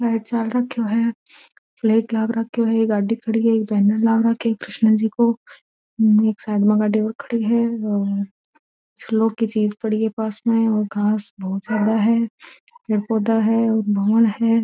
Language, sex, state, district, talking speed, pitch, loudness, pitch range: Marwari, female, Rajasthan, Nagaur, 180 wpm, 220 Hz, -20 LUFS, 215-230 Hz